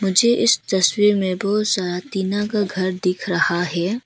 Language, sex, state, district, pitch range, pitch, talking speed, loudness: Hindi, female, Arunachal Pradesh, Lower Dibang Valley, 185-210 Hz, 195 Hz, 175 wpm, -19 LUFS